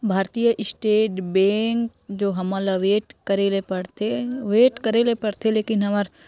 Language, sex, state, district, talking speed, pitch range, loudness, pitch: Hindi, female, Chhattisgarh, Korba, 155 wpm, 195-225 Hz, -22 LUFS, 210 Hz